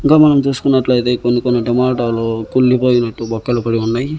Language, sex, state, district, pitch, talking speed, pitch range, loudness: Telugu, male, Andhra Pradesh, Annamaya, 125 Hz, 155 wpm, 115-130 Hz, -14 LUFS